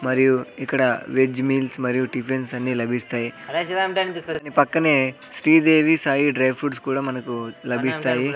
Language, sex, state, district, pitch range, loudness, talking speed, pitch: Telugu, male, Andhra Pradesh, Sri Satya Sai, 125-145 Hz, -21 LUFS, 115 wpm, 130 Hz